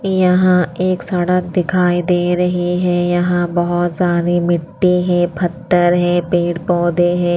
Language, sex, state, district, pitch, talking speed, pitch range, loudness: Hindi, female, Himachal Pradesh, Shimla, 175 Hz, 130 wpm, 175-180 Hz, -15 LUFS